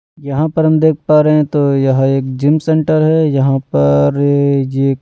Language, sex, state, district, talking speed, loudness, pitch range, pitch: Hindi, male, Delhi, New Delhi, 190 wpm, -13 LUFS, 135-155 Hz, 140 Hz